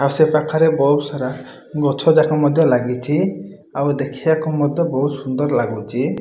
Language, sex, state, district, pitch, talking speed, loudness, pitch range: Odia, male, Odisha, Malkangiri, 145 Hz, 145 wpm, -18 LUFS, 130-155 Hz